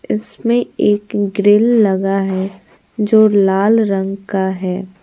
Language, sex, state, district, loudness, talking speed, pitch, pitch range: Hindi, female, Bihar, Patna, -15 LUFS, 120 wpm, 195 Hz, 190-210 Hz